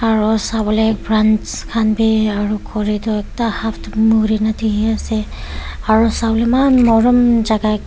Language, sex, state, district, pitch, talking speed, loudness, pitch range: Nagamese, female, Nagaland, Kohima, 220 Hz, 160 wpm, -15 LUFS, 215-225 Hz